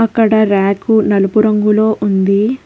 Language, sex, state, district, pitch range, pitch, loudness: Telugu, female, Telangana, Hyderabad, 200-220 Hz, 215 Hz, -12 LUFS